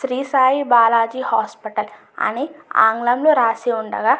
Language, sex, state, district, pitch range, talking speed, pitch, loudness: Telugu, female, Andhra Pradesh, Anantapur, 220-260 Hz, 130 wpm, 230 Hz, -18 LUFS